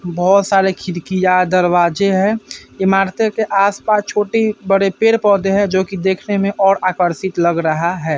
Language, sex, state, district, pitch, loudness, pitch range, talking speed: Hindi, male, Bihar, Vaishali, 195 Hz, -15 LUFS, 185-200 Hz, 140 wpm